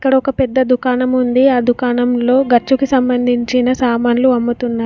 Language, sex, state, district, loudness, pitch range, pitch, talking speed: Telugu, female, Telangana, Komaram Bheem, -14 LUFS, 245-260 Hz, 250 Hz, 135 wpm